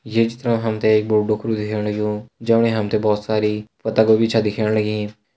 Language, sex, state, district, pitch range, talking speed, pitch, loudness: Hindi, male, Uttarakhand, Tehri Garhwal, 105-110 Hz, 200 wpm, 110 Hz, -19 LUFS